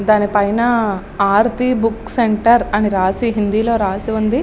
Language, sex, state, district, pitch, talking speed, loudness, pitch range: Telugu, female, Andhra Pradesh, Srikakulam, 215 Hz, 135 wpm, -16 LUFS, 205-230 Hz